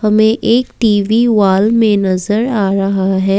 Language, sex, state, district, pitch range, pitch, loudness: Hindi, female, Assam, Kamrup Metropolitan, 195-225 Hz, 210 Hz, -12 LUFS